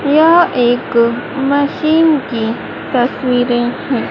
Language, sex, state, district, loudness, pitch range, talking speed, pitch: Hindi, female, Madhya Pradesh, Dhar, -14 LUFS, 240-295 Hz, 90 wpm, 260 Hz